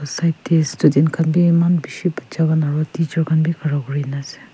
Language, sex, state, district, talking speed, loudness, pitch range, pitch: Nagamese, female, Nagaland, Kohima, 210 wpm, -18 LUFS, 145-165 Hz, 160 Hz